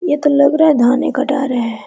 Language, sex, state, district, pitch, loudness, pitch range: Hindi, female, Jharkhand, Sahebganj, 275 Hz, -13 LUFS, 250-295 Hz